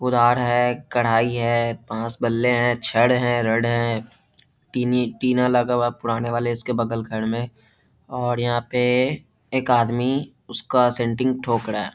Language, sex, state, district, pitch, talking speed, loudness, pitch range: Hindi, male, Bihar, Jahanabad, 120 Hz, 155 wpm, -21 LUFS, 115-125 Hz